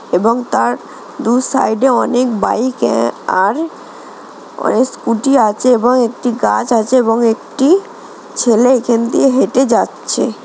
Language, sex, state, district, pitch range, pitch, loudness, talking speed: Bengali, female, West Bengal, Jhargram, 230-255 Hz, 245 Hz, -13 LUFS, 120 wpm